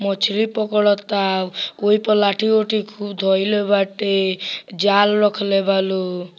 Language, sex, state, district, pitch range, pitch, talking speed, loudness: Bhojpuri, male, Bihar, Muzaffarpur, 195-210 Hz, 200 Hz, 115 wpm, -18 LUFS